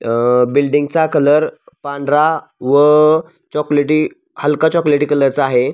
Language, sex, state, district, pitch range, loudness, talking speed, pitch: Marathi, male, Maharashtra, Pune, 140-155 Hz, -14 LUFS, 105 wpm, 145 Hz